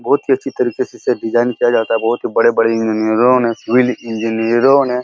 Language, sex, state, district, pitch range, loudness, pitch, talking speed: Hindi, male, Uttar Pradesh, Muzaffarnagar, 115-125 Hz, -15 LUFS, 120 Hz, 225 wpm